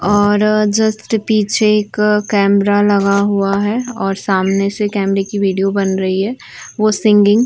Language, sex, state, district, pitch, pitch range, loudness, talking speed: Hindi, female, Uttar Pradesh, Varanasi, 205 Hz, 195-215 Hz, -14 LUFS, 160 wpm